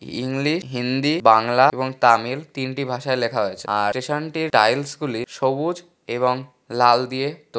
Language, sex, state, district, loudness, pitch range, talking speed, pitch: Bengali, male, West Bengal, Paschim Medinipur, -20 LUFS, 120-145 Hz, 150 wpm, 130 Hz